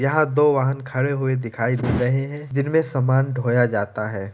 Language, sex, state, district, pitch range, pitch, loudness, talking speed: Hindi, male, Bihar, Gopalganj, 120-140 Hz, 130 Hz, -21 LUFS, 195 wpm